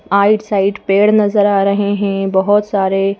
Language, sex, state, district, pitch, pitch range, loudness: Hindi, female, Madhya Pradesh, Bhopal, 200 Hz, 195-205 Hz, -14 LUFS